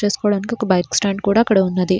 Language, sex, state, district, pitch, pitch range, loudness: Telugu, female, Andhra Pradesh, Srikakulam, 200 Hz, 185-210 Hz, -17 LUFS